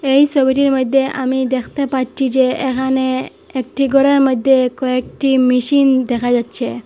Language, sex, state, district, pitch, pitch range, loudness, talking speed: Bengali, female, Assam, Hailakandi, 265 Hz, 255-275 Hz, -15 LUFS, 130 wpm